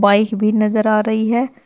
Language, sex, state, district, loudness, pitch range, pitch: Hindi, female, Uttar Pradesh, Shamli, -16 LUFS, 215-220 Hz, 215 Hz